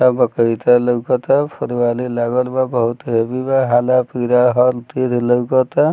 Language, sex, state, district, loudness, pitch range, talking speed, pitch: Bhojpuri, male, Bihar, Muzaffarpur, -16 LUFS, 120-130 Hz, 140 wpm, 125 Hz